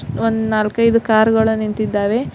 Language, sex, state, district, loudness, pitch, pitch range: Kannada, female, Karnataka, Koppal, -16 LUFS, 220 Hz, 215-225 Hz